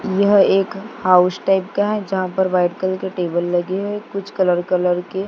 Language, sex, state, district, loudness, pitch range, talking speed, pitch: Hindi, female, Maharashtra, Gondia, -18 LUFS, 180-200 Hz, 205 wpm, 190 Hz